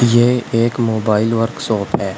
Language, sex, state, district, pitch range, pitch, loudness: Hindi, male, Uttar Pradesh, Shamli, 115-120 Hz, 115 Hz, -16 LUFS